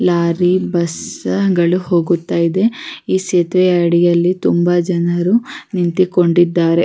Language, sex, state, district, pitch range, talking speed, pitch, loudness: Kannada, female, Karnataka, Raichur, 170-185 Hz, 90 wpm, 175 Hz, -15 LUFS